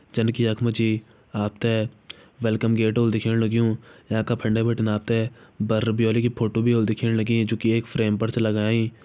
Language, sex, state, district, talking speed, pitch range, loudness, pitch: Hindi, male, Uttarakhand, Tehri Garhwal, 210 wpm, 110-115 Hz, -23 LUFS, 115 Hz